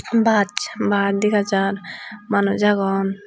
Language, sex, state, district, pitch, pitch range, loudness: Chakma, female, Tripura, Unakoti, 205 Hz, 200-210 Hz, -19 LUFS